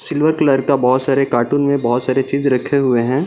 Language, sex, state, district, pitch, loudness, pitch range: Hindi, male, Bihar, Gaya, 135 Hz, -16 LUFS, 125-140 Hz